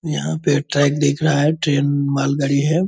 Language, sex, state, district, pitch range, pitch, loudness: Hindi, male, Bihar, Purnia, 140-150 Hz, 145 Hz, -18 LUFS